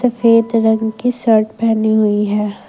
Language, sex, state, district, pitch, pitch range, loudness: Hindi, female, Jharkhand, Ranchi, 220 Hz, 215-230 Hz, -14 LUFS